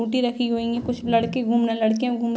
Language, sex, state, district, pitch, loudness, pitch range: Hindi, female, Uttar Pradesh, Deoria, 235 Hz, -23 LUFS, 230-245 Hz